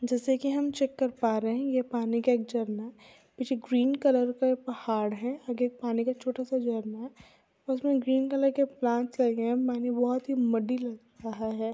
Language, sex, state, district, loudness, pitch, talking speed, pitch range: Hindi, female, Andhra Pradesh, Chittoor, -29 LUFS, 245 Hz, 210 wpm, 235-260 Hz